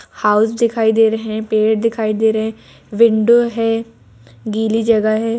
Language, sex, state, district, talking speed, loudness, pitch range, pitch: Hindi, female, Uttar Pradesh, Jalaun, 165 wpm, -15 LUFS, 215-225 Hz, 220 Hz